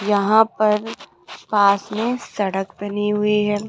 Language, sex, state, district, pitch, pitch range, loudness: Hindi, female, Rajasthan, Jaipur, 210 Hz, 205-215 Hz, -19 LUFS